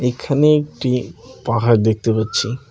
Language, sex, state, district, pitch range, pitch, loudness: Bengali, male, West Bengal, Cooch Behar, 115-135 Hz, 125 Hz, -17 LUFS